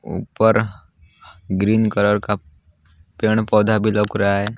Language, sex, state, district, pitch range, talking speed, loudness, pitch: Hindi, male, Odisha, Nuapada, 90-110 Hz, 130 wpm, -19 LUFS, 105 Hz